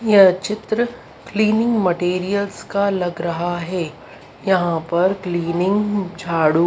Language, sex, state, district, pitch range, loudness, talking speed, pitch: Hindi, female, Madhya Pradesh, Dhar, 175-205 Hz, -19 LUFS, 110 wpm, 185 Hz